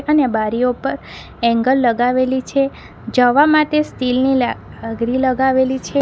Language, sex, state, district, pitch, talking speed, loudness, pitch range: Gujarati, female, Gujarat, Valsad, 255 Hz, 130 wpm, -16 LUFS, 245-270 Hz